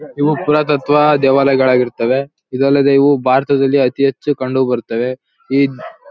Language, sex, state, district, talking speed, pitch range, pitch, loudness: Kannada, male, Karnataka, Bellary, 110 wpm, 130-145 Hz, 135 Hz, -14 LUFS